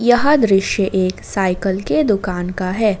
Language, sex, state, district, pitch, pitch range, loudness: Hindi, female, Jharkhand, Ranchi, 195 Hz, 185-215 Hz, -17 LUFS